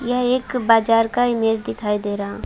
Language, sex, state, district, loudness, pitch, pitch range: Hindi, female, Chhattisgarh, Bilaspur, -19 LUFS, 225 Hz, 220-245 Hz